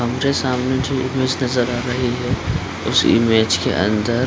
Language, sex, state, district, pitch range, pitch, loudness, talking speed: Hindi, male, Bihar, Supaul, 120-130 Hz, 125 Hz, -18 LUFS, 170 wpm